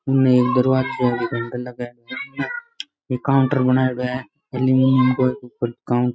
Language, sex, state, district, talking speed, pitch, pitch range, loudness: Rajasthani, male, Rajasthan, Nagaur, 145 wpm, 130 Hz, 125-130 Hz, -20 LUFS